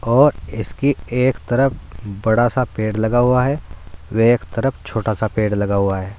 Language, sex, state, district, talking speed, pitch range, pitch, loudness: Hindi, male, Uttar Pradesh, Saharanpur, 185 wpm, 100-125 Hz, 110 Hz, -18 LUFS